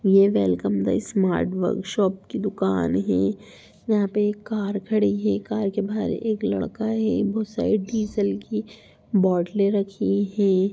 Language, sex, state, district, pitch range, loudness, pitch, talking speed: Hindi, female, Bihar, Samastipur, 185-215 Hz, -23 LUFS, 200 Hz, 150 wpm